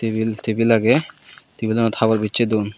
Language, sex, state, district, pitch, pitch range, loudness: Chakma, male, Tripura, West Tripura, 110 Hz, 110-115 Hz, -19 LUFS